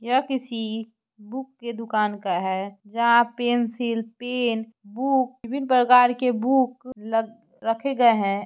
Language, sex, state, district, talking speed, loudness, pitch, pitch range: Hindi, male, Bihar, Muzaffarpur, 130 wpm, -23 LUFS, 235 Hz, 225-250 Hz